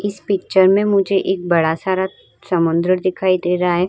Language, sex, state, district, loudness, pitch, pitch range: Hindi, female, Uttar Pradesh, Varanasi, -17 LUFS, 185 Hz, 175-195 Hz